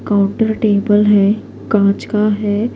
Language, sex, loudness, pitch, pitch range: Urdu, female, -14 LUFS, 210 Hz, 205-215 Hz